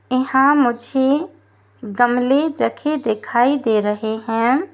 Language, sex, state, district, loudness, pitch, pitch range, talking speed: Hindi, female, Uttar Pradesh, Lalitpur, -18 LUFS, 250 Hz, 225-275 Hz, 100 wpm